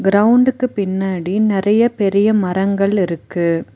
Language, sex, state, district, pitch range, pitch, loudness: Tamil, female, Tamil Nadu, Nilgiris, 190-210 Hz, 195 Hz, -16 LUFS